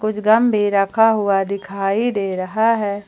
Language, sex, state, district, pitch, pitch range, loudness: Hindi, female, Jharkhand, Ranchi, 205 Hz, 195-220 Hz, -17 LUFS